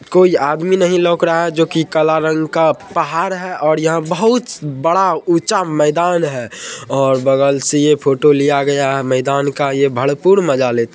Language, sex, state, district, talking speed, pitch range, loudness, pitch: Hindi, male, Bihar, Purnia, 190 wpm, 140-175 Hz, -14 LUFS, 155 Hz